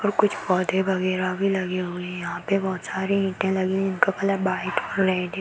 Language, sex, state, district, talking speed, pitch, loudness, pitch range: Hindi, female, Uttar Pradesh, Varanasi, 245 wpm, 190 Hz, -24 LUFS, 185-195 Hz